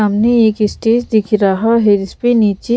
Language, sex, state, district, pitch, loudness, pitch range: Hindi, female, Chandigarh, Chandigarh, 220 Hz, -13 LUFS, 205-230 Hz